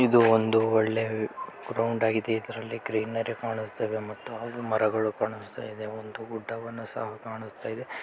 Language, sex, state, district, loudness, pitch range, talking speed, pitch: Kannada, male, Karnataka, Bellary, -29 LUFS, 110-115 Hz, 125 wpm, 110 Hz